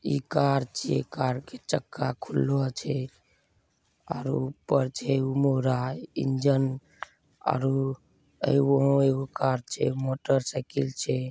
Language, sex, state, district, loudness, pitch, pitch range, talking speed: Angika, male, Bihar, Bhagalpur, -27 LUFS, 135 Hz, 130-140 Hz, 95 wpm